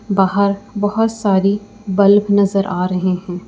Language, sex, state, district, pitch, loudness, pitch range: Hindi, female, Uttar Pradesh, Lucknow, 200 Hz, -16 LUFS, 190-205 Hz